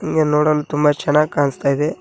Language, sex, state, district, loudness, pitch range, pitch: Kannada, male, Karnataka, Koppal, -17 LUFS, 145-155 Hz, 150 Hz